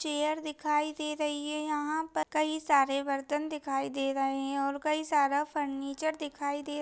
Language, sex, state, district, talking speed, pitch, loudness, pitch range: Hindi, female, Maharashtra, Aurangabad, 175 wpm, 295 Hz, -31 LUFS, 280-305 Hz